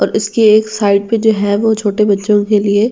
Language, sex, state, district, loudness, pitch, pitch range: Hindi, female, Delhi, New Delhi, -12 LUFS, 210 Hz, 205-220 Hz